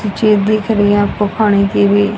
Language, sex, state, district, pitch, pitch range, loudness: Hindi, female, Haryana, Rohtak, 205 Hz, 205-215 Hz, -13 LUFS